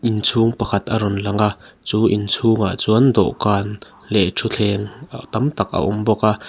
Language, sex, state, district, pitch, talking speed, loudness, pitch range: Mizo, male, Mizoram, Aizawl, 105 Hz, 175 wpm, -18 LUFS, 100-115 Hz